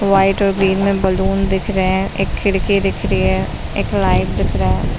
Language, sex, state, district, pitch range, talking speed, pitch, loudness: Hindi, female, Chhattisgarh, Bilaspur, 190-195 Hz, 215 wpm, 195 Hz, -16 LUFS